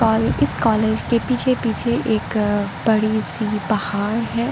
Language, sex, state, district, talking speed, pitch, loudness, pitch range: Hindi, female, Arunachal Pradesh, Lower Dibang Valley, 160 wpm, 220 Hz, -20 LUFS, 210-235 Hz